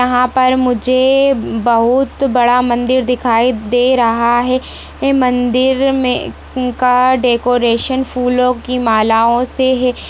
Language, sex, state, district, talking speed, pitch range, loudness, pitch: Hindi, female, Chhattisgarh, Jashpur, 115 wpm, 240-255 Hz, -13 LUFS, 250 Hz